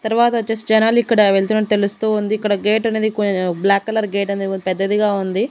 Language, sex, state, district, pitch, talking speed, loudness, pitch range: Telugu, female, Andhra Pradesh, Annamaya, 210 Hz, 185 wpm, -17 LUFS, 200-220 Hz